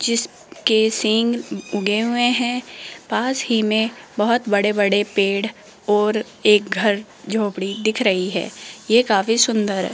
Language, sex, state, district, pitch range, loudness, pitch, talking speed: Hindi, female, Rajasthan, Jaipur, 205-235 Hz, -19 LUFS, 215 Hz, 140 wpm